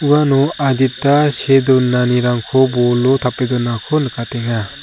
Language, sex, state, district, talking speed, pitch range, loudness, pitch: Garo, male, Meghalaya, South Garo Hills, 100 wpm, 120-135 Hz, -15 LUFS, 130 Hz